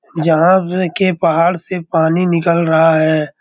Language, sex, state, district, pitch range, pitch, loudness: Hindi, male, Bihar, Araria, 160-180 Hz, 170 Hz, -14 LUFS